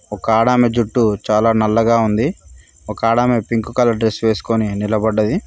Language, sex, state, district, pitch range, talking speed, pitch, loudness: Telugu, male, Telangana, Mahabubabad, 105-115 Hz, 145 wpm, 110 Hz, -16 LUFS